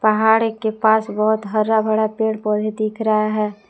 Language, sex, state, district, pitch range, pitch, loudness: Hindi, female, Jharkhand, Palamu, 215-220 Hz, 215 Hz, -18 LUFS